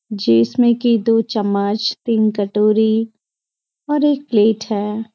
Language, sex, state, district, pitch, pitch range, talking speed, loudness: Hindi, female, Uttarakhand, Uttarkashi, 220 Hz, 210-230 Hz, 115 wpm, -16 LUFS